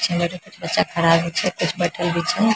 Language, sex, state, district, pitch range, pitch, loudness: Maithili, female, Bihar, Samastipur, 170-180 Hz, 175 Hz, -20 LUFS